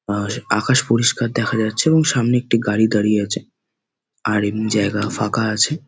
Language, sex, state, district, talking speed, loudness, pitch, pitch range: Bengali, male, West Bengal, Kolkata, 165 wpm, -18 LUFS, 110 Hz, 105-120 Hz